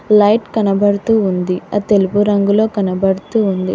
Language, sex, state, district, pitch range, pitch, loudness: Telugu, female, Telangana, Hyderabad, 195-210 Hz, 205 Hz, -14 LUFS